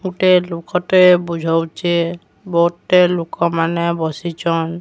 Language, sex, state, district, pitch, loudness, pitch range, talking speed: Odia, female, Odisha, Sambalpur, 170 Hz, -16 LUFS, 165-180 Hz, 85 wpm